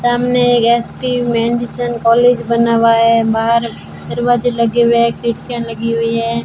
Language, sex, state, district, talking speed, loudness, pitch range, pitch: Hindi, female, Rajasthan, Bikaner, 160 wpm, -14 LUFS, 230-240 Hz, 235 Hz